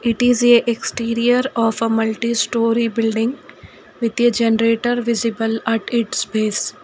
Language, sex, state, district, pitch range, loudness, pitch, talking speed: English, female, Karnataka, Bangalore, 225-240 Hz, -18 LUFS, 230 Hz, 150 wpm